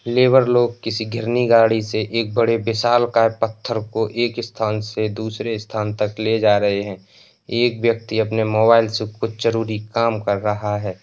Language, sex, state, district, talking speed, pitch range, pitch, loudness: Hindi, male, Uttar Pradesh, Etah, 175 wpm, 110-115 Hz, 110 Hz, -19 LUFS